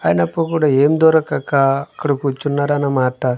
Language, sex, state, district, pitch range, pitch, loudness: Telugu, male, Andhra Pradesh, Manyam, 135-150 Hz, 140 Hz, -16 LUFS